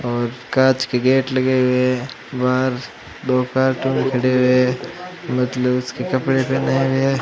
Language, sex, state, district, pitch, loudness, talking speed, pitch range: Hindi, male, Rajasthan, Bikaner, 130 Hz, -18 LUFS, 150 wpm, 125-130 Hz